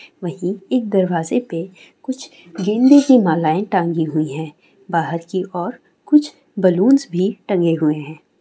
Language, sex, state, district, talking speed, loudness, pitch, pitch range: Hindi, female, Uttar Pradesh, Jalaun, 145 wpm, -17 LUFS, 185 Hz, 165-210 Hz